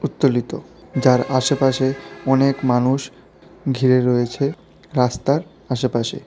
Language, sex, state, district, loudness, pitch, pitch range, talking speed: Bengali, male, Tripura, West Tripura, -19 LUFS, 130 Hz, 125-140 Hz, 85 wpm